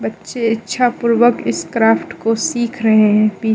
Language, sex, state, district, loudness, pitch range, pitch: Hindi, female, Mizoram, Aizawl, -15 LUFS, 215-240 Hz, 225 Hz